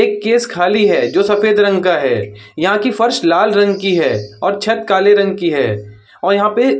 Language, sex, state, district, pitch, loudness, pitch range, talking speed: Hindi, male, Uttar Pradesh, Muzaffarnagar, 200 Hz, -14 LUFS, 175-215 Hz, 230 wpm